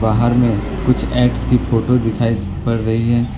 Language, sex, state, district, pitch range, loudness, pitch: Hindi, male, West Bengal, Alipurduar, 110-125 Hz, -16 LUFS, 115 Hz